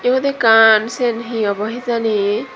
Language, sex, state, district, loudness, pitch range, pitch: Chakma, female, Tripura, Dhalai, -15 LUFS, 215-245 Hz, 230 Hz